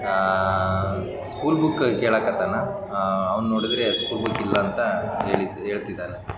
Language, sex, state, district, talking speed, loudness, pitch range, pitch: Kannada, male, Karnataka, Raichur, 115 wpm, -23 LUFS, 95-105 Hz, 95 Hz